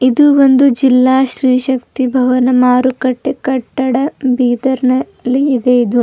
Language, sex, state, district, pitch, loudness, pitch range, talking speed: Kannada, female, Karnataka, Bidar, 255 Hz, -12 LUFS, 250-265 Hz, 100 wpm